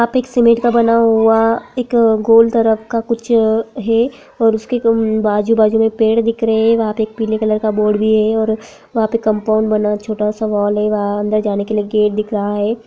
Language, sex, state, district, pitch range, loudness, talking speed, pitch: Hindi, female, Bihar, Gaya, 215-230 Hz, -15 LUFS, 205 wpm, 220 Hz